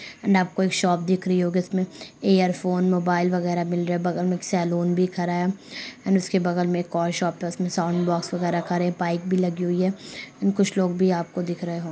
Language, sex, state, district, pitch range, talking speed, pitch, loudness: Hindi, female, Bihar, Sitamarhi, 175-185 Hz, 240 wpm, 180 Hz, -24 LUFS